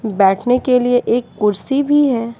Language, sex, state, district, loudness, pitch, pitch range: Hindi, female, Bihar, West Champaran, -15 LUFS, 245 Hz, 215-250 Hz